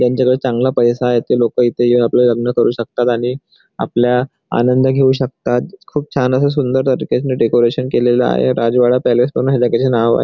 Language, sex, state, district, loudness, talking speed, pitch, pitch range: Marathi, male, Maharashtra, Nagpur, -15 LUFS, 180 wpm, 125 Hz, 120-130 Hz